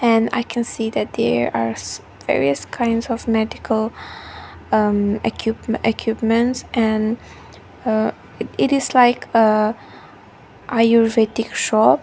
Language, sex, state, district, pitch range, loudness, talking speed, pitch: English, female, Nagaland, Dimapur, 215-230 Hz, -19 LUFS, 120 wpm, 225 Hz